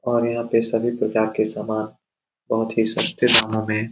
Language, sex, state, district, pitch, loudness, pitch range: Hindi, male, Bihar, Saran, 110 Hz, -20 LUFS, 110-115 Hz